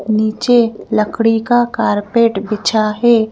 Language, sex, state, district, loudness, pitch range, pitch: Hindi, female, Madhya Pradesh, Bhopal, -14 LUFS, 215-235 Hz, 225 Hz